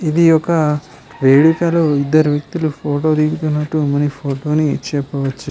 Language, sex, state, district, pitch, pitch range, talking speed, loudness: Telugu, male, Telangana, Karimnagar, 150 Hz, 145-155 Hz, 110 wpm, -16 LUFS